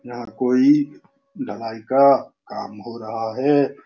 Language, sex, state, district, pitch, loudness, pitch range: Hindi, male, Bihar, Saran, 130 Hz, -20 LUFS, 115-145 Hz